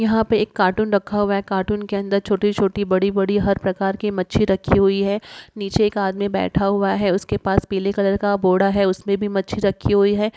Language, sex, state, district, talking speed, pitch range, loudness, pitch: Hindi, female, Uttar Pradesh, Jyotiba Phule Nagar, 225 wpm, 195-205 Hz, -19 LUFS, 200 Hz